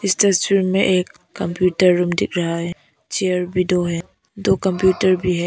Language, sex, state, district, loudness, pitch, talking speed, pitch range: Hindi, female, Arunachal Pradesh, Papum Pare, -18 LUFS, 185 Hz, 185 wpm, 180-190 Hz